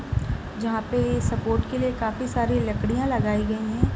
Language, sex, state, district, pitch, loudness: Hindi, female, Bihar, East Champaran, 210 Hz, -25 LUFS